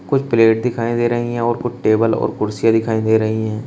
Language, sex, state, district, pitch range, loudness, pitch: Hindi, male, Uttar Pradesh, Shamli, 110-120 Hz, -17 LUFS, 115 Hz